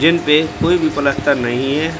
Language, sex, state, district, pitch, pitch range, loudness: Hindi, male, Bihar, Samastipur, 150 Hz, 140-165 Hz, -16 LUFS